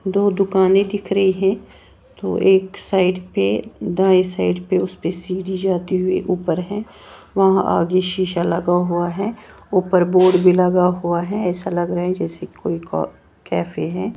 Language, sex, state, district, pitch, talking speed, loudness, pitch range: Hindi, female, Haryana, Jhajjar, 185 Hz, 165 wpm, -19 LUFS, 175-190 Hz